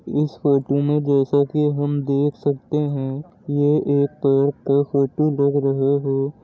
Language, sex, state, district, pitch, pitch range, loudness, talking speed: Hindi, male, Uttar Pradesh, Jyotiba Phule Nagar, 140 Hz, 140-145 Hz, -20 LUFS, 160 wpm